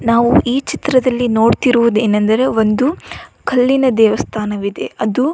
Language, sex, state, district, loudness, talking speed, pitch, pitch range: Kannada, female, Karnataka, Belgaum, -14 LUFS, 100 wpm, 240 Hz, 220-260 Hz